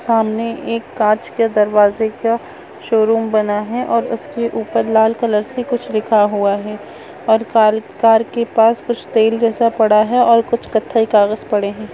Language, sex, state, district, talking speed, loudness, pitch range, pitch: Hindi, female, Chhattisgarh, Raigarh, 170 wpm, -15 LUFS, 215-230 Hz, 225 Hz